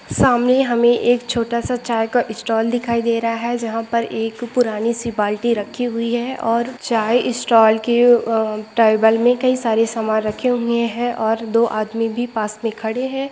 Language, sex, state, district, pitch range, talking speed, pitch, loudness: Hindi, female, Bihar, Saran, 225-240 Hz, 190 wpm, 235 Hz, -18 LUFS